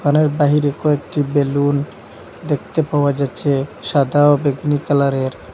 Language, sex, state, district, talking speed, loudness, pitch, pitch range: Bengali, male, Assam, Hailakandi, 110 wpm, -17 LUFS, 145 Hz, 140-145 Hz